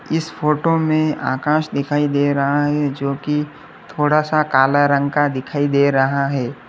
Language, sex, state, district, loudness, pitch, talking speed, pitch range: Hindi, male, Uttar Pradesh, Lalitpur, -18 LUFS, 145 Hz, 170 wpm, 140-150 Hz